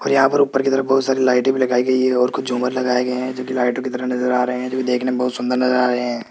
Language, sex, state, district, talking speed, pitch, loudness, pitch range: Hindi, male, Rajasthan, Jaipur, 335 wpm, 125 Hz, -18 LUFS, 125-130 Hz